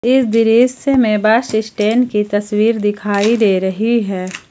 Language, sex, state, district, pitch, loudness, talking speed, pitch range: Hindi, female, Jharkhand, Ranchi, 220 Hz, -14 LUFS, 145 wpm, 210-235 Hz